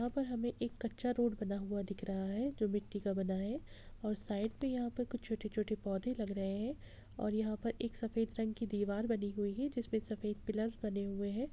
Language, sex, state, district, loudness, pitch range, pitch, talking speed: Hindi, female, Bihar, Gopalganj, -39 LUFS, 205-240 Hz, 220 Hz, 230 wpm